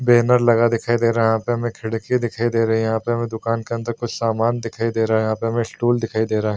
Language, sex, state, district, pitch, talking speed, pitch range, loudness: Hindi, male, Bihar, Madhepura, 115 Hz, 310 wpm, 110-120 Hz, -20 LUFS